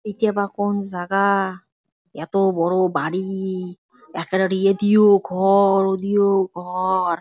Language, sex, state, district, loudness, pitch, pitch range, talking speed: Bengali, female, West Bengal, Jalpaiguri, -19 LUFS, 190 Hz, 185-200 Hz, 100 wpm